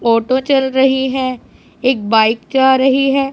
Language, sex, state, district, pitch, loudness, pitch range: Hindi, female, Punjab, Pathankot, 265 Hz, -14 LUFS, 235-265 Hz